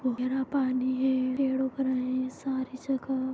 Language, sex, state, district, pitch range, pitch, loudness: Hindi, female, Jharkhand, Jamtara, 255-265 Hz, 260 Hz, -29 LUFS